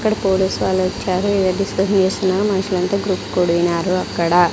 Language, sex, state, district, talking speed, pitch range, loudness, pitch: Telugu, female, Andhra Pradesh, Sri Satya Sai, 145 wpm, 185-195 Hz, -18 LUFS, 190 Hz